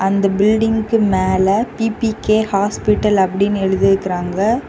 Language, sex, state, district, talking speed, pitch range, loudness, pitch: Tamil, female, Tamil Nadu, Kanyakumari, 90 wpm, 190-220 Hz, -16 LUFS, 200 Hz